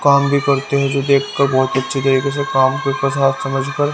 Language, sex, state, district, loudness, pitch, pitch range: Hindi, male, Haryana, Rohtak, -16 LUFS, 135 Hz, 135-140 Hz